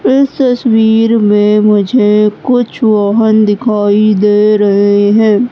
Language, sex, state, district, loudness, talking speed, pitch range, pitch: Hindi, female, Madhya Pradesh, Katni, -9 LUFS, 110 wpm, 210-225 Hz, 215 Hz